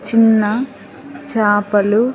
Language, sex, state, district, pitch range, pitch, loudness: Telugu, female, Andhra Pradesh, Sri Satya Sai, 205-230 Hz, 220 Hz, -15 LUFS